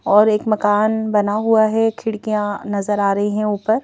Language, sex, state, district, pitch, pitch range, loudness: Hindi, female, Madhya Pradesh, Bhopal, 210 Hz, 205-220 Hz, -18 LUFS